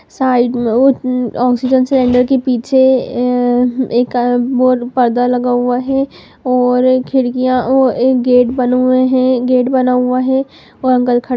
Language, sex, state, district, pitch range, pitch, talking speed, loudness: Hindi, female, Bihar, Muzaffarpur, 245-260 Hz, 250 Hz, 155 wpm, -13 LUFS